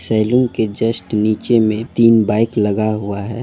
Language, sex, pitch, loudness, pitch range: Bhojpuri, male, 110 Hz, -16 LUFS, 105-115 Hz